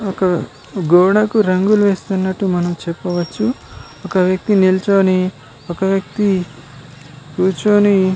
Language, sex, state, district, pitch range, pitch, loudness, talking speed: Telugu, male, Telangana, Karimnagar, 175-195 Hz, 185 Hz, -16 LUFS, 95 wpm